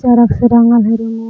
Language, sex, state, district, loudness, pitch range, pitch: Magahi, female, Jharkhand, Palamu, -10 LUFS, 225-235 Hz, 235 Hz